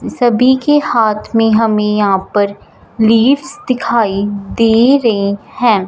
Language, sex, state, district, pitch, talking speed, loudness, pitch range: Hindi, male, Punjab, Fazilka, 225 Hz, 110 wpm, -13 LUFS, 205-240 Hz